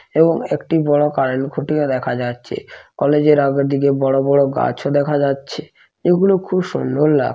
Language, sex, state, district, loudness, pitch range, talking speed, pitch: Bengali, male, West Bengal, Paschim Medinipur, -17 LUFS, 135-150 Hz, 155 wpm, 140 Hz